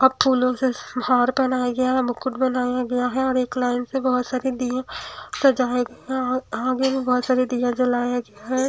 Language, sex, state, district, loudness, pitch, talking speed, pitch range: Hindi, female, Himachal Pradesh, Shimla, -22 LUFS, 255 Hz, 205 wpm, 250-260 Hz